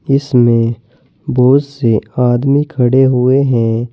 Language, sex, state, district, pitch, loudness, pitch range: Hindi, male, Uttar Pradesh, Saharanpur, 125 Hz, -12 LUFS, 120-135 Hz